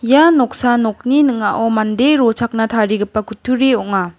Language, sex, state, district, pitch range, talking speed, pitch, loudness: Garo, female, Meghalaya, West Garo Hills, 215-255 Hz, 130 wpm, 230 Hz, -15 LUFS